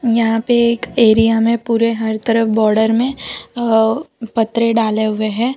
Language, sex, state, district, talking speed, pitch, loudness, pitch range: Hindi, female, Gujarat, Valsad, 160 wpm, 230 Hz, -15 LUFS, 220-235 Hz